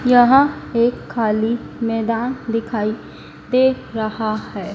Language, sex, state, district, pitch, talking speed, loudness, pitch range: Hindi, female, Madhya Pradesh, Dhar, 230 Hz, 100 wpm, -19 LUFS, 220-250 Hz